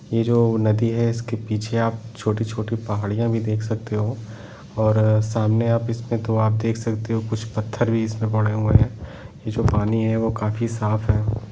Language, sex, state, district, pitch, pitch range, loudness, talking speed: Hindi, male, Jharkhand, Jamtara, 110 Hz, 110-115 Hz, -22 LUFS, 205 wpm